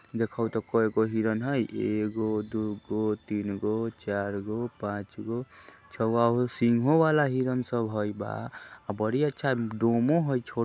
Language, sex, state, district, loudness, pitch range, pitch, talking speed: Bajjika, male, Bihar, Vaishali, -28 LUFS, 105-120 Hz, 115 Hz, 140 wpm